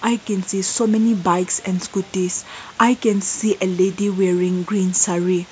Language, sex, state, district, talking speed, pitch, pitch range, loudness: English, female, Nagaland, Kohima, 175 wpm, 195 Hz, 185-210 Hz, -19 LUFS